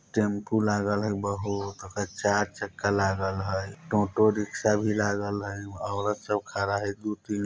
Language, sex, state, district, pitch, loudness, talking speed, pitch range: Bajjika, male, Bihar, Vaishali, 100 Hz, -28 LUFS, 160 wpm, 100-105 Hz